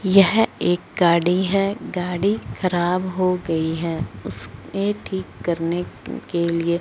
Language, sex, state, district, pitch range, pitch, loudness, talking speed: Hindi, female, Punjab, Fazilka, 170-190 Hz, 175 Hz, -22 LUFS, 125 wpm